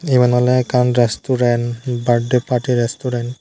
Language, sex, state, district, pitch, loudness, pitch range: Chakma, male, Tripura, Dhalai, 125 Hz, -17 LUFS, 120-125 Hz